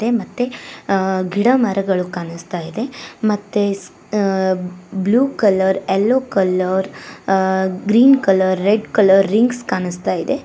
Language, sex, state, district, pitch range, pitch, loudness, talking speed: Kannada, female, Karnataka, Koppal, 190-225 Hz, 195 Hz, -17 LUFS, 120 wpm